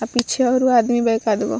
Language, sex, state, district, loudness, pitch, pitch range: Bhojpuri, female, Bihar, Gopalganj, -18 LUFS, 240 Hz, 225-250 Hz